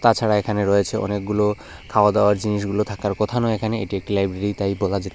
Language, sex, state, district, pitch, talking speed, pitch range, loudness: Bengali, male, Tripura, West Tripura, 105 Hz, 200 wpm, 100-105 Hz, -21 LUFS